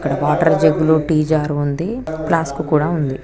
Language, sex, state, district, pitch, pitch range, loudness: Telugu, female, Telangana, Nalgonda, 155 Hz, 150-160 Hz, -17 LUFS